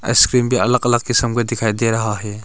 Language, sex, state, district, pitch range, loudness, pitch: Hindi, male, Arunachal Pradesh, Longding, 110-125 Hz, -16 LUFS, 115 Hz